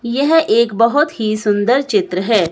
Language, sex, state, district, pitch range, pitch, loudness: Hindi, female, Himachal Pradesh, Shimla, 210-265 Hz, 230 Hz, -15 LUFS